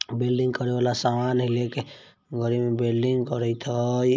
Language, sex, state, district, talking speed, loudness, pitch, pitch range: Maithili, male, Bihar, Vaishali, 160 wpm, -25 LUFS, 125 Hz, 120-125 Hz